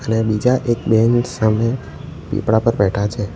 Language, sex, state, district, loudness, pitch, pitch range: Gujarati, male, Gujarat, Valsad, -17 LUFS, 110 Hz, 110-120 Hz